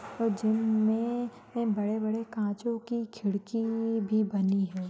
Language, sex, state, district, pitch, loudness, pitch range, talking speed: Hindi, female, Maharashtra, Aurangabad, 220 Hz, -30 LUFS, 210-230 Hz, 135 wpm